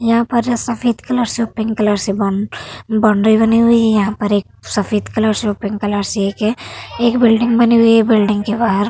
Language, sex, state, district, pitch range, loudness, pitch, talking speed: Hindi, female, Uttar Pradesh, Hamirpur, 205-235 Hz, -15 LUFS, 220 Hz, 235 wpm